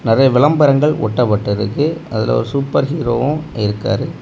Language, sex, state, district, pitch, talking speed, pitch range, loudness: Tamil, male, Tamil Nadu, Kanyakumari, 135 Hz, 115 wpm, 110-150 Hz, -16 LUFS